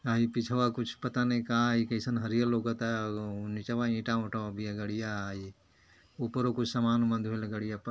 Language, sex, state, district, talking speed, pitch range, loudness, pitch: Bhojpuri, male, Uttar Pradesh, Ghazipur, 175 wpm, 105-120 Hz, -32 LUFS, 115 Hz